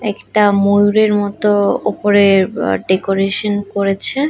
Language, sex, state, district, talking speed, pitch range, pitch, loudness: Bengali, female, Odisha, Khordha, 95 wpm, 195-210 Hz, 205 Hz, -14 LUFS